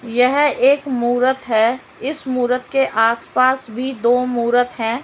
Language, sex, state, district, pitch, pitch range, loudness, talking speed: Hindi, female, Uttar Pradesh, Muzaffarnagar, 250 Hz, 240-260 Hz, -17 LUFS, 145 wpm